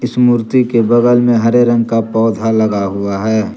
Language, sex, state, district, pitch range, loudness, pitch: Hindi, male, Jharkhand, Garhwa, 110-120 Hz, -12 LUFS, 115 Hz